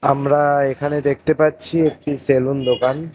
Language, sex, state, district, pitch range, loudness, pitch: Bengali, male, West Bengal, Cooch Behar, 135-155 Hz, -18 LUFS, 145 Hz